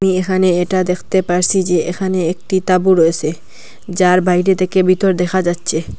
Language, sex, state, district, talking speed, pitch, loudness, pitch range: Bengali, female, Assam, Hailakandi, 150 wpm, 185 Hz, -15 LUFS, 180-185 Hz